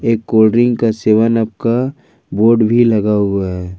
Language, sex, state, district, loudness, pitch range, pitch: Hindi, male, Jharkhand, Ranchi, -13 LUFS, 105-115 Hz, 115 Hz